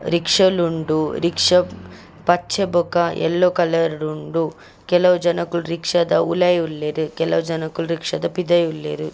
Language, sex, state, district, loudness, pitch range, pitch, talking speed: Tulu, female, Karnataka, Dakshina Kannada, -19 LUFS, 160-175 Hz, 170 Hz, 145 wpm